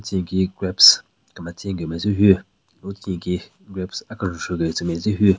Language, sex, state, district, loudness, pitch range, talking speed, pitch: Rengma, male, Nagaland, Kohima, -19 LUFS, 85-100 Hz, 180 wpm, 95 Hz